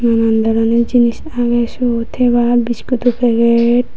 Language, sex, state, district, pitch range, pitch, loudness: Chakma, female, Tripura, Unakoti, 235-245 Hz, 240 Hz, -14 LUFS